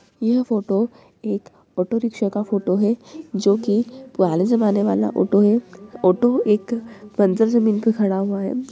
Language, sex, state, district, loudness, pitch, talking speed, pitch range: Hindi, female, Bihar, Purnia, -20 LUFS, 210 Hz, 150 wpm, 200-230 Hz